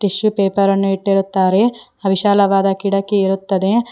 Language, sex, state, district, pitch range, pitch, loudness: Kannada, female, Karnataka, Koppal, 195-205 Hz, 195 Hz, -15 LUFS